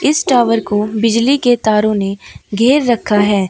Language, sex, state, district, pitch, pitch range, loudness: Hindi, female, Uttar Pradesh, Shamli, 225 Hz, 210-245 Hz, -13 LUFS